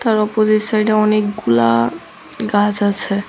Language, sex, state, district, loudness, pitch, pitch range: Bengali, female, Tripura, West Tripura, -16 LUFS, 210 Hz, 200-215 Hz